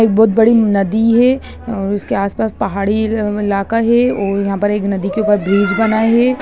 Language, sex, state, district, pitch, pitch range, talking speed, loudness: Hindi, female, Bihar, Gaya, 210 Hz, 200-225 Hz, 195 wpm, -14 LUFS